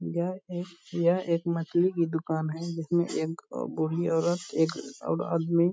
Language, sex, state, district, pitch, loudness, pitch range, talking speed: Hindi, male, Bihar, Purnia, 170 Hz, -29 LUFS, 160-175 Hz, 170 wpm